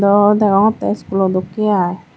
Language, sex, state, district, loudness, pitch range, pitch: Chakma, female, Tripura, Dhalai, -15 LUFS, 185-210 Hz, 200 Hz